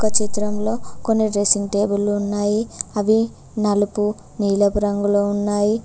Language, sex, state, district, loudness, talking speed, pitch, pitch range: Telugu, female, Telangana, Mahabubabad, -20 LUFS, 115 wpm, 205 Hz, 205-215 Hz